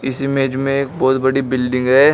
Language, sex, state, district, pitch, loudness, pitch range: Hindi, male, Uttar Pradesh, Shamli, 135 Hz, -17 LUFS, 130-135 Hz